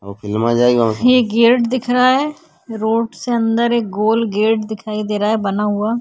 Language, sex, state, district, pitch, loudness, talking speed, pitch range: Hindi, female, Uttar Pradesh, Jyotiba Phule Nagar, 220 Hz, -16 LUFS, 170 wpm, 210-235 Hz